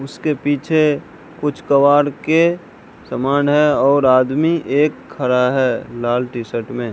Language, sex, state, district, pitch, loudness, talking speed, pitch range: Hindi, male, Rajasthan, Bikaner, 140 Hz, -16 LUFS, 140 wpm, 125-150 Hz